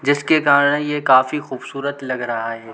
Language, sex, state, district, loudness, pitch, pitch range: Hindi, male, Chhattisgarh, Bilaspur, -18 LUFS, 140 Hz, 130-145 Hz